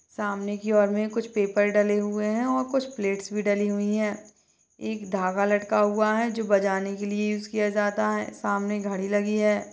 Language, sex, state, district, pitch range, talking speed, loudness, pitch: Hindi, female, Chhattisgarh, Bastar, 205-215 Hz, 185 wpm, -25 LUFS, 210 Hz